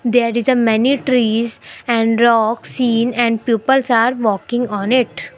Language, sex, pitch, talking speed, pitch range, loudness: English, female, 235 Hz, 155 wpm, 225-250 Hz, -16 LUFS